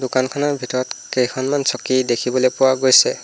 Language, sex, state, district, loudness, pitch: Assamese, male, Assam, Hailakandi, -18 LUFS, 130 Hz